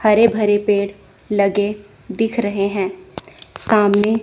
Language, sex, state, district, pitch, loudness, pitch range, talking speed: Hindi, female, Chandigarh, Chandigarh, 205 Hz, -18 LUFS, 200-215 Hz, 115 wpm